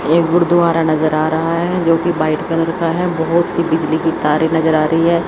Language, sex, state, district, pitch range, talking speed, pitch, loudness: Hindi, female, Chandigarh, Chandigarh, 160-170 Hz, 225 wpm, 165 Hz, -15 LUFS